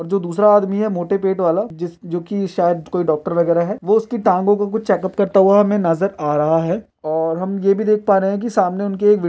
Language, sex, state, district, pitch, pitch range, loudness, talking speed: Hindi, male, Chhattisgarh, Kabirdham, 195 Hz, 170-205 Hz, -17 LUFS, 265 wpm